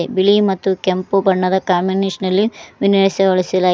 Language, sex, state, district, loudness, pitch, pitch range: Kannada, female, Karnataka, Koppal, -16 LUFS, 190 Hz, 185-195 Hz